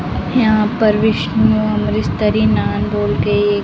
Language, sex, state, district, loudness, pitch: Hindi, female, Delhi, New Delhi, -15 LUFS, 205 Hz